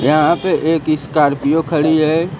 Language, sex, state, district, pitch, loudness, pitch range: Hindi, male, Uttar Pradesh, Lucknow, 155 Hz, -15 LUFS, 150-160 Hz